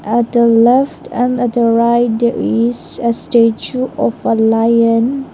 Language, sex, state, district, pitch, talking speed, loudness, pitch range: English, female, Nagaland, Dimapur, 235 Hz, 155 wpm, -13 LUFS, 230-245 Hz